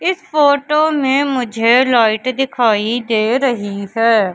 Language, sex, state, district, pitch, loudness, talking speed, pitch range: Hindi, female, Madhya Pradesh, Katni, 245 Hz, -15 LUFS, 125 wpm, 225-280 Hz